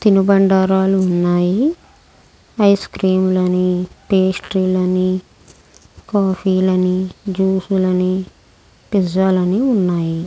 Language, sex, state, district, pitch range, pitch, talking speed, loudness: Telugu, female, Andhra Pradesh, Krishna, 180-190 Hz, 185 Hz, 105 wpm, -16 LUFS